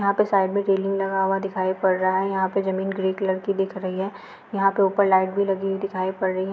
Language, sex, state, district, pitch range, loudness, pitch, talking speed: Hindi, female, Bihar, Araria, 190-195 Hz, -23 LUFS, 195 Hz, 275 wpm